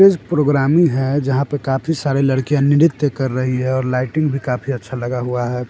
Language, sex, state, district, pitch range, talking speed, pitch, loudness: Hindi, male, Bihar, Sitamarhi, 130-145 Hz, 200 wpm, 135 Hz, -17 LUFS